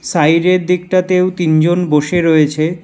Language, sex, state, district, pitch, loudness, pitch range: Bengali, male, West Bengal, Alipurduar, 175 Hz, -13 LUFS, 155-180 Hz